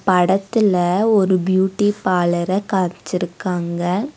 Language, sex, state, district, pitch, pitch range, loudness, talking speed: Tamil, female, Tamil Nadu, Nilgiris, 185 Hz, 180-200 Hz, -18 LUFS, 70 wpm